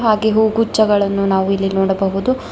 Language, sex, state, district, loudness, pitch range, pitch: Kannada, female, Karnataka, Bangalore, -16 LUFS, 195-220 Hz, 200 Hz